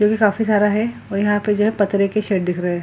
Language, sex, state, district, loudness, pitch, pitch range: Hindi, female, Bihar, Lakhisarai, -18 LUFS, 210 Hz, 200-210 Hz